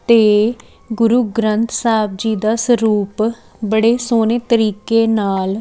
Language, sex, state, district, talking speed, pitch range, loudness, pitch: Punjabi, female, Chandigarh, Chandigarh, 130 wpm, 215-230 Hz, -15 LUFS, 225 Hz